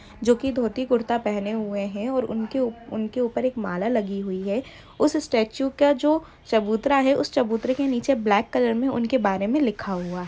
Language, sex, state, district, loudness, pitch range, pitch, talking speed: Hindi, female, Jharkhand, Jamtara, -24 LUFS, 215-265 Hz, 235 Hz, 200 wpm